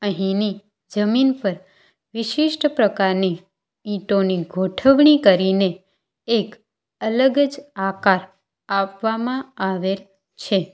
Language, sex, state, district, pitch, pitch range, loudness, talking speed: Gujarati, female, Gujarat, Valsad, 200 Hz, 190-230 Hz, -20 LUFS, 85 wpm